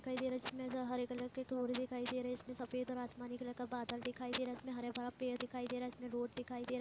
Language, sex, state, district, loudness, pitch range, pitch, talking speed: Hindi, female, Chhattisgarh, Raigarh, -43 LUFS, 245-255 Hz, 250 Hz, 335 wpm